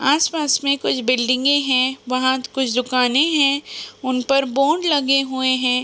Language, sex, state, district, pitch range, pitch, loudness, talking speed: Hindi, female, Uttar Pradesh, Budaun, 255-280 Hz, 265 Hz, -18 LUFS, 165 wpm